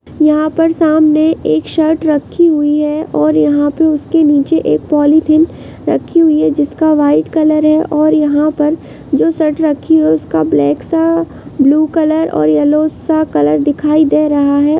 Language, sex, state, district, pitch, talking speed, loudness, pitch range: Hindi, female, Uttar Pradesh, Jalaun, 305 Hz, 175 wpm, -12 LUFS, 285-315 Hz